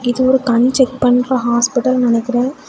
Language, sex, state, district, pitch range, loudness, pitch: Tamil, female, Tamil Nadu, Kanyakumari, 245-260 Hz, -14 LUFS, 250 Hz